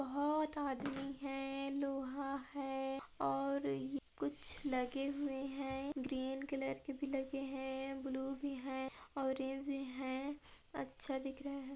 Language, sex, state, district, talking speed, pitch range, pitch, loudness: Hindi, female, Chhattisgarh, Balrampur, 130 wpm, 265-275 Hz, 270 Hz, -42 LUFS